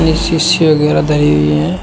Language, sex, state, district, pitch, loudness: Hindi, male, Uttar Pradesh, Shamli, 150 Hz, -11 LUFS